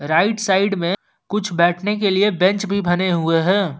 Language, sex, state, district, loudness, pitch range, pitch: Hindi, male, Jharkhand, Ranchi, -18 LUFS, 175-205 Hz, 190 Hz